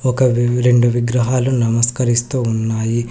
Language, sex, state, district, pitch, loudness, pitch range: Telugu, male, Telangana, Hyderabad, 120 Hz, -16 LUFS, 115-125 Hz